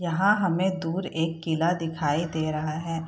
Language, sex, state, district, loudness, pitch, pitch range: Hindi, female, Bihar, Saharsa, -26 LUFS, 165 Hz, 160-180 Hz